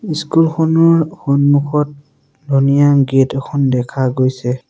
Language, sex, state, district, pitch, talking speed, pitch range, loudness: Assamese, male, Assam, Sonitpur, 140 Hz, 100 wpm, 135-155 Hz, -14 LUFS